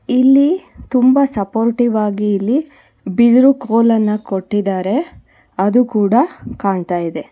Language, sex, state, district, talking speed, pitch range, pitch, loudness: Kannada, female, Karnataka, Bangalore, 100 wpm, 200-255 Hz, 225 Hz, -15 LUFS